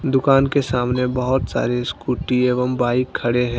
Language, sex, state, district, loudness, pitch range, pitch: Hindi, male, Jharkhand, Deoghar, -19 LUFS, 125-130 Hz, 125 Hz